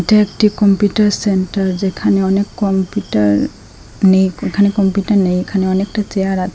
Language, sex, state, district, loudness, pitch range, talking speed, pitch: Bengali, female, Assam, Hailakandi, -15 LUFS, 190-205 Hz, 135 wpm, 195 Hz